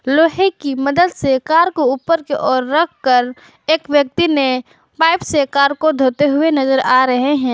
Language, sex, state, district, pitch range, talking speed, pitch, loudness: Hindi, female, Jharkhand, Garhwa, 265-320 Hz, 185 wpm, 285 Hz, -15 LUFS